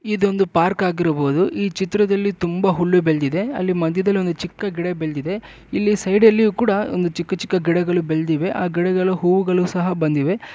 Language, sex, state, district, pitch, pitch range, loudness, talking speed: Kannada, male, Karnataka, Bellary, 185 Hz, 175-200 Hz, -19 LUFS, 140 wpm